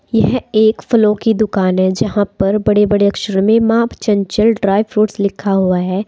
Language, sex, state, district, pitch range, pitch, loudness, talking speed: Hindi, female, Uttar Pradesh, Saharanpur, 195-220 Hz, 210 Hz, -14 LUFS, 190 wpm